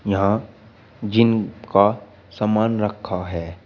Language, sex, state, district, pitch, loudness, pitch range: Hindi, male, Uttar Pradesh, Shamli, 105 Hz, -20 LUFS, 100-110 Hz